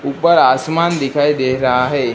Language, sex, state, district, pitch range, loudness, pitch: Hindi, female, Gujarat, Gandhinagar, 130-155 Hz, -14 LUFS, 140 Hz